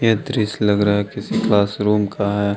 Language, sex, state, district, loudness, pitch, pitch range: Hindi, male, Jharkhand, Deoghar, -19 LUFS, 105 Hz, 100-105 Hz